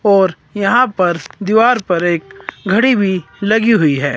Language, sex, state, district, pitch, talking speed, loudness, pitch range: Hindi, male, Himachal Pradesh, Shimla, 195 Hz, 160 wpm, -14 LUFS, 170-220 Hz